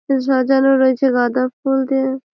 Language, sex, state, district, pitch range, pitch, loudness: Bengali, female, West Bengal, Malda, 260-270 Hz, 265 Hz, -16 LUFS